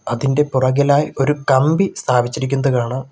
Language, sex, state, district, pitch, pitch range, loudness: Malayalam, male, Kerala, Kollam, 135 Hz, 130-145 Hz, -17 LUFS